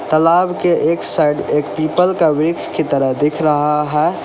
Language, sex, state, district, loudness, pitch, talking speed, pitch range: Hindi, male, Uttar Pradesh, Lalitpur, -15 LUFS, 155 Hz, 185 wpm, 150-165 Hz